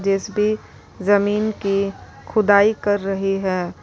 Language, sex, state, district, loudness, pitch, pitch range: Hindi, female, Uttar Pradesh, Lalitpur, -20 LUFS, 200 Hz, 195-210 Hz